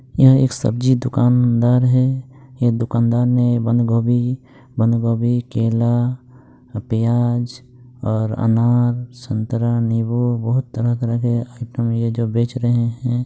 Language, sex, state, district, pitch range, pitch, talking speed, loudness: Hindi, male, Jharkhand, Sahebganj, 115-125 Hz, 120 Hz, 115 wpm, -18 LUFS